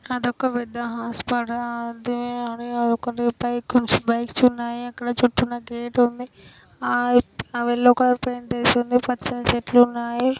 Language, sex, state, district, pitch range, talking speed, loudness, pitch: Telugu, female, Andhra Pradesh, Guntur, 235-245 Hz, 110 wpm, -22 LUFS, 240 Hz